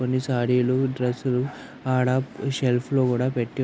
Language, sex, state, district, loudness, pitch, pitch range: Telugu, male, Andhra Pradesh, Anantapur, -24 LUFS, 130 Hz, 125-130 Hz